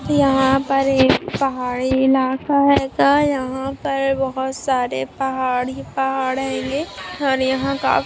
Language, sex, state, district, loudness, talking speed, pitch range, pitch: Hindi, female, Chhattisgarh, Rajnandgaon, -19 LUFS, 140 wpm, 260-275 Hz, 265 Hz